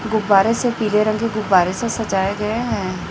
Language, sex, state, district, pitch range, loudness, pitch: Hindi, female, Chhattisgarh, Raipur, 195-225 Hz, -18 LUFS, 215 Hz